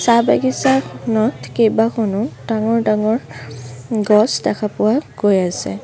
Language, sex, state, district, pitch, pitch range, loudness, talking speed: Assamese, female, Assam, Sonitpur, 215 Hz, 200-230 Hz, -17 LUFS, 100 wpm